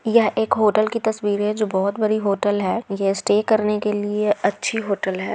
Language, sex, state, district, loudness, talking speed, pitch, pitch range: Magahi, female, Bihar, Gaya, -20 LUFS, 215 wpm, 210 Hz, 200-220 Hz